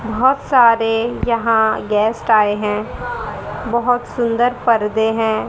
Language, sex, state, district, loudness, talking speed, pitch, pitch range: Hindi, female, Haryana, Charkhi Dadri, -16 LUFS, 110 wpm, 225 Hz, 220-235 Hz